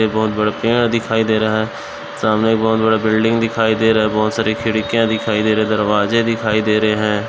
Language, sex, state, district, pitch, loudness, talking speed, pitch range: Bhojpuri, male, Uttar Pradesh, Gorakhpur, 110 Hz, -16 LUFS, 230 wpm, 110-115 Hz